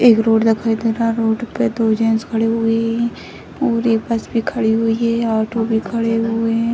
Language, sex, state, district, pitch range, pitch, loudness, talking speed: Hindi, female, Bihar, Sitamarhi, 225-230 Hz, 225 Hz, -17 LUFS, 240 wpm